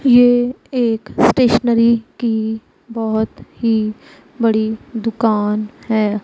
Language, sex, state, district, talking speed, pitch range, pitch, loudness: Hindi, female, Punjab, Pathankot, 85 wpm, 220-240 Hz, 225 Hz, -17 LUFS